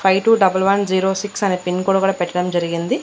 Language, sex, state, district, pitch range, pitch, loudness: Telugu, female, Andhra Pradesh, Annamaya, 180-195 Hz, 190 Hz, -18 LUFS